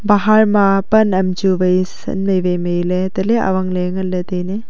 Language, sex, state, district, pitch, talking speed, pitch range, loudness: Wancho, female, Arunachal Pradesh, Longding, 190 Hz, 205 wpm, 180-200 Hz, -16 LUFS